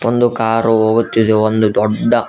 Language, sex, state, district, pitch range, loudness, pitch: Kannada, male, Karnataka, Koppal, 110-115 Hz, -14 LUFS, 115 Hz